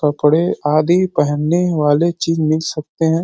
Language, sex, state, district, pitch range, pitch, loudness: Hindi, male, Uttar Pradesh, Deoria, 150-170 Hz, 155 Hz, -16 LUFS